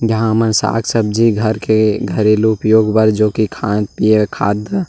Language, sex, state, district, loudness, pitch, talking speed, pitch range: Chhattisgarhi, male, Chhattisgarh, Rajnandgaon, -14 LUFS, 110 Hz, 195 wpm, 105-110 Hz